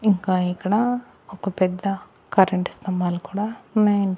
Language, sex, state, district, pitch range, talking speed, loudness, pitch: Telugu, male, Andhra Pradesh, Annamaya, 185-210 Hz, 115 wpm, -23 LUFS, 195 Hz